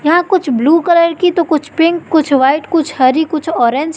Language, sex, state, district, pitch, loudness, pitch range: Hindi, female, Madhya Pradesh, Katni, 320 Hz, -12 LUFS, 285-340 Hz